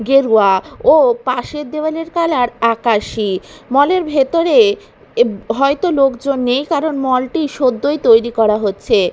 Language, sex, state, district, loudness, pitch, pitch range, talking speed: Bengali, female, Bihar, Katihar, -15 LUFS, 275 Hz, 230-310 Hz, 130 wpm